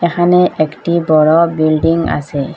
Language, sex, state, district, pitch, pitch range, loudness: Bengali, female, Assam, Hailakandi, 165 Hz, 155-170 Hz, -13 LUFS